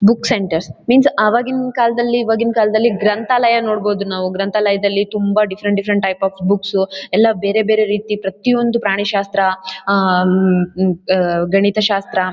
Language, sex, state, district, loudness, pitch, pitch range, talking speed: Kannada, female, Karnataka, Bellary, -16 LUFS, 205 Hz, 190-220 Hz, 130 wpm